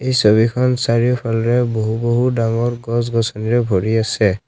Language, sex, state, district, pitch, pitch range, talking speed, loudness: Assamese, male, Assam, Kamrup Metropolitan, 115 Hz, 110-120 Hz, 135 wpm, -17 LUFS